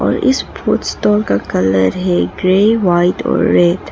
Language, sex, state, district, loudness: Hindi, female, Arunachal Pradesh, Papum Pare, -14 LUFS